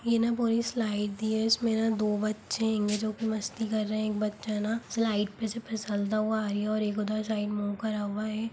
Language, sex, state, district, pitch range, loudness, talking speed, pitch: Hindi, female, Chhattisgarh, Jashpur, 210-225 Hz, -30 LUFS, 240 wpm, 215 Hz